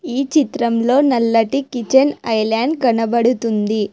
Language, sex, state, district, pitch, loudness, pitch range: Telugu, female, Telangana, Hyderabad, 240 Hz, -16 LUFS, 225-270 Hz